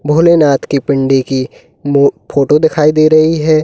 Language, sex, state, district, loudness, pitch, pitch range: Hindi, male, Uttar Pradesh, Lalitpur, -11 LUFS, 150 Hz, 140-155 Hz